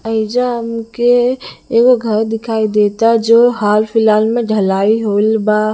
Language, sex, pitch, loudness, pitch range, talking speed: Bhojpuri, female, 225 Hz, -13 LUFS, 215-235 Hz, 145 wpm